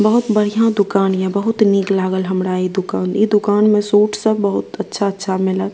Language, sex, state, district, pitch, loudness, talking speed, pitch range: Maithili, female, Bihar, Purnia, 200 Hz, -16 LUFS, 190 wpm, 190-210 Hz